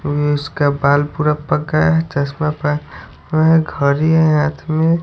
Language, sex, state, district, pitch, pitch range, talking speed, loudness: Hindi, male, Odisha, Sambalpur, 150 Hz, 145-160 Hz, 180 wpm, -16 LUFS